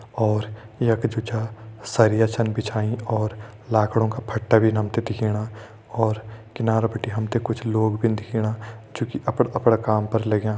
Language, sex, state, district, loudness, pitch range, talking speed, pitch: Hindi, male, Uttarakhand, Tehri Garhwal, -23 LUFS, 110-115 Hz, 165 wpm, 110 Hz